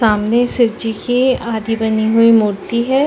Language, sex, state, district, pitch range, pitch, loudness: Hindi, female, Chhattisgarh, Sarguja, 220-240 Hz, 230 Hz, -15 LUFS